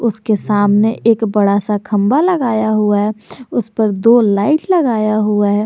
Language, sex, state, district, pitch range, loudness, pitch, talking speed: Hindi, male, Jharkhand, Garhwa, 205-230 Hz, -14 LUFS, 215 Hz, 170 wpm